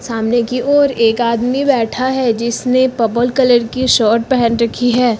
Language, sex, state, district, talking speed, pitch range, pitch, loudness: Hindi, female, Uttar Pradesh, Lucknow, 175 wpm, 230-255 Hz, 240 Hz, -14 LUFS